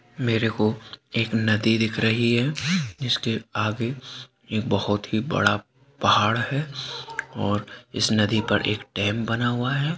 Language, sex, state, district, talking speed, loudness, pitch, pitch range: Hindi, male, Uttarakhand, Uttarkashi, 145 wpm, -24 LUFS, 115 Hz, 105-130 Hz